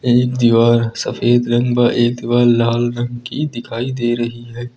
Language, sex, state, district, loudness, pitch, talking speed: Hindi, male, Uttar Pradesh, Lucknow, -16 LUFS, 120 Hz, 175 wpm